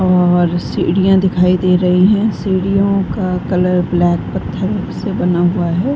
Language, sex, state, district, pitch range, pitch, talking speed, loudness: Hindi, female, Bihar, Darbhanga, 175-190 Hz, 180 Hz, 160 wpm, -14 LUFS